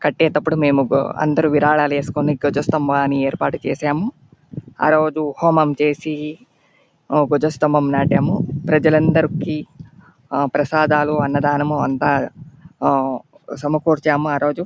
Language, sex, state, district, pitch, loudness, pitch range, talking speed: Telugu, male, Andhra Pradesh, Anantapur, 150 Hz, -18 LUFS, 145-155 Hz, 100 wpm